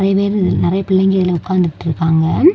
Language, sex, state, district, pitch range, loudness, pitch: Tamil, female, Tamil Nadu, Kanyakumari, 165-195 Hz, -15 LUFS, 190 Hz